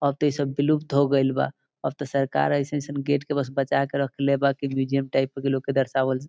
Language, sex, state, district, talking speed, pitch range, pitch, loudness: Bhojpuri, male, Bihar, Saran, 240 wpm, 135-140 Hz, 140 Hz, -24 LUFS